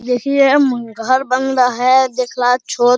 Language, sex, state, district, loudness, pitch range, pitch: Hindi, male, Bihar, Araria, -14 LUFS, 245-260 Hz, 255 Hz